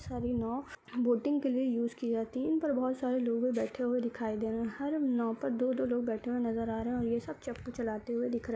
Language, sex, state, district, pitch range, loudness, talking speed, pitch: Hindi, male, Uttar Pradesh, Hamirpur, 230-255 Hz, -33 LUFS, 285 wpm, 245 Hz